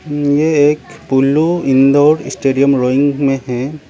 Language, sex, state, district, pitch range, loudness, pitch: Hindi, male, Arunachal Pradesh, Lower Dibang Valley, 135-150 Hz, -13 LUFS, 140 Hz